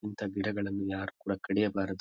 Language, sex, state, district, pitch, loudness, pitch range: Kannada, male, Karnataka, Bijapur, 100 Hz, -33 LUFS, 95-105 Hz